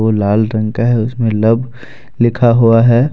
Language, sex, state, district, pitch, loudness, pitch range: Hindi, male, Jharkhand, Deoghar, 115 Hz, -13 LUFS, 110-120 Hz